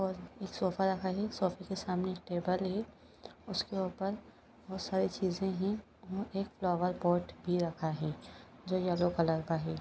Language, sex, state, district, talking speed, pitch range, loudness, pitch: Hindi, female, Uttar Pradesh, Etah, 180 wpm, 175-195 Hz, -35 LUFS, 185 Hz